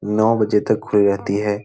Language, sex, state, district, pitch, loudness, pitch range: Hindi, male, Bihar, Jahanabad, 105 Hz, -18 LUFS, 100-105 Hz